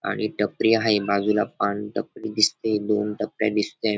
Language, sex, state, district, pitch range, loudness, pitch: Marathi, male, Maharashtra, Dhule, 105-110 Hz, -23 LUFS, 105 Hz